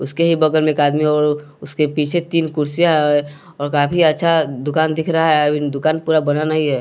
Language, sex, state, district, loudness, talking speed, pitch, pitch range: Hindi, male, Bihar, West Champaran, -16 LUFS, 220 wpm, 155 Hz, 145-160 Hz